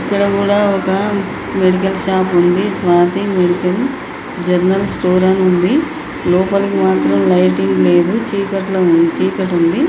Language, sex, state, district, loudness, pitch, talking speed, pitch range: Telugu, female, Telangana, Nalgonda, -14 LUFS, 185 Hz, 120 wpm, 175-200 Hz